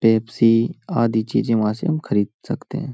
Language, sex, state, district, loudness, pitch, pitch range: Hindi, male, Uttar Pradesh, Hamirpur, -20 LUFS, 115 Hz, 110-120 Hz